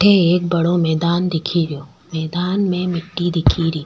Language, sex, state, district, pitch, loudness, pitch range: Rajasthani, female, Rajasthan, Nagaur, 170 Hz, -18 LUFS, 165-180 Hz